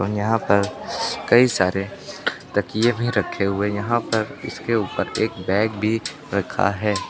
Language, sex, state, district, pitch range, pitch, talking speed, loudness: Hindi, male, Uttar Pradesh, Lucknow, 100-110 Hz, 105 Hz, 150 wpm, -22 LUFS